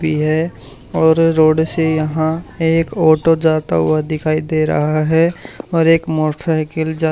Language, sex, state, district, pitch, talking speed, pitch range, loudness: Hindi, male, Haryana, Charkhi Dadri, 160 Hz, 160 wpm, 155-160 Hz, -15 LUFS